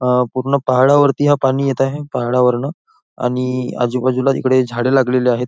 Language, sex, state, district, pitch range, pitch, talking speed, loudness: Marathi, male, Maharashtra, Nagpur, 125-135 Hz, 130 Hz, 155 wpm, -16 LUFS